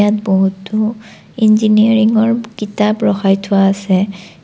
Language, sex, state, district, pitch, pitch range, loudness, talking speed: Assamese, female, Assam, Kamrup Metropolitan, 210 Hz, 195-220 Hz, -14 LUFS, 80 wpm